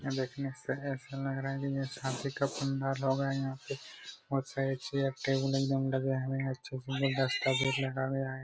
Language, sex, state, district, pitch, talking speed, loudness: Hindi, male, Jharkhand, Jamtara, 135 Hz, 205 wpm, -34 LUFS